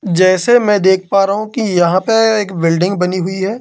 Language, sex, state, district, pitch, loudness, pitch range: Hindi, male, Madhya Pradesh, Katni, 190 Hz, -13 LUFS, 185-215 Hz